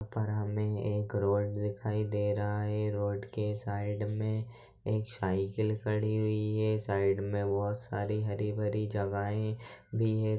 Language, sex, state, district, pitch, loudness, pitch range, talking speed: Hindi, male, Bihar, Jahanabad, 105 Hz, -33 LUFS, 100-110 Hz, 140 wpm